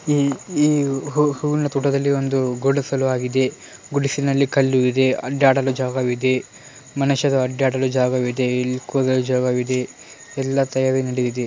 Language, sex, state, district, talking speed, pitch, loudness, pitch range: Kannada, male, Karnataka, Dharwad, 110 wpm, 130 Hz, -20 LUFS, 130-140 Hz